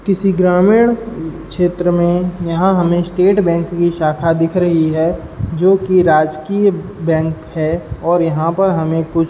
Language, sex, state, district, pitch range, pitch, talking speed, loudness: Hindi, male, Uttar Pradesh, Budaun, 165-185 Hz, 175 Hz, 155 wpm, -14 LUFS